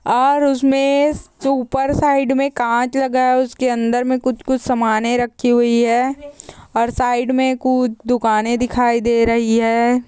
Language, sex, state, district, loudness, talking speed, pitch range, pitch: Hindi, female, Bihar, Purnia, -17 LUFS, 150 wpm, 235-265 Hz, 250 Hz